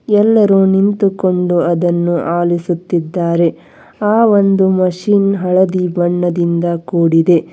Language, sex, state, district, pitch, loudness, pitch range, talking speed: Kannada, female, Karnataka, Bangalore, 180 Hz, -13 LUFS, 175-195 Hz, 80 wpm